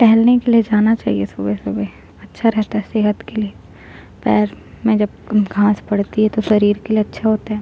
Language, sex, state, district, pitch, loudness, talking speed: Hindi, female, Chhattisgarh, Jashpur, 210 Hz, -17 LUFS, 195 wpm